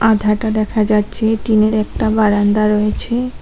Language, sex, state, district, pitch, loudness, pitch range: Bengali, female, West Bengal, Cooch Behar, 215 Hz, -15 LUFS, 210-220 Hz